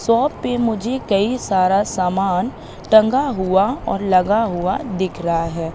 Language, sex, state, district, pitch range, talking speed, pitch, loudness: Hindi, female, Madhya Pradesh, Katni, 185-230 Hz, 145 wpm, 195 Hz, -18 LUFS